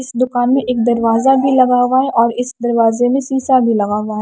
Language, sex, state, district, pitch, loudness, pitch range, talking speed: Hindi, female, Odisha, Nuapada, 245 Hz, -14 LUFS, 230-260 Hz, 240 wpm